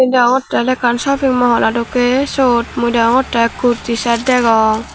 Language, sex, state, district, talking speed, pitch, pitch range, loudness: Chakma, female, Tripura, Dhalai, 155 wpm, 245 Hz, 235-255 Hz, -14 LUFS